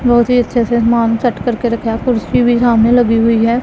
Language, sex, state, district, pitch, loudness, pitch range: Hindi, female, Punjab, Pathankot, 235 Hz, -13 LUFS, 230-245 Hz